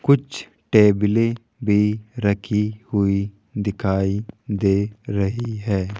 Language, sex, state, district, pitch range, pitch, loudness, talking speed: Hindi, male, Rajasthan, Jaipur, 100-115 Hz, 105 Hz, -21 LUFS, 90 wpm